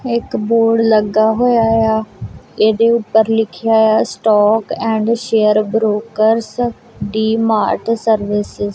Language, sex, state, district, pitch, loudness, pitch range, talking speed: Punjabi, female, Punjab, Kapurthala, 220 Hz, -14 LUFS, 215-225 Hz, 115 wpm